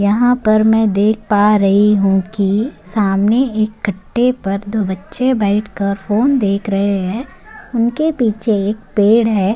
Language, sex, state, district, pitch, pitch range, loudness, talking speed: Hindi, female, Maharashtra, Chandrapur, 210 Hz, 200-225 Hz, -15 LUFS, 150 wpm